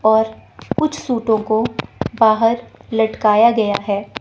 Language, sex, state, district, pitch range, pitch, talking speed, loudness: Hindi, female, Chandigarh, Chandigarh, 215-230 Hz, 220 Hz, 115 wpm, -17 LUFS